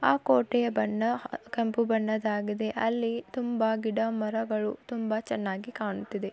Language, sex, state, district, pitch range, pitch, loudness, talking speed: Kannada, female, Karnataka, Belgaum, 210-230 Hz, 220 Hz, -29 LUFS, 125 wpm